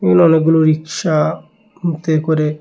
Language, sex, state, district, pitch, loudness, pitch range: Bengali, male, Tripura, West Tripura, 155 Hz, -15 LUFS, 155-160 Hz